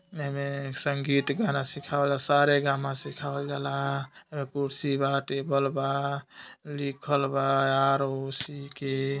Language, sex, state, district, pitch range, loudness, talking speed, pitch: Hindi, male, Uttar Pradesh, Deoria, 135-140 Hz, -28 LUFS, 130 wpm, 140 Hz